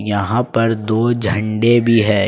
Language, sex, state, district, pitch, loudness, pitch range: Hindi, male, Jharkhand, Ranchi, 110 Hz, -16 LUFS, 105-115 Hz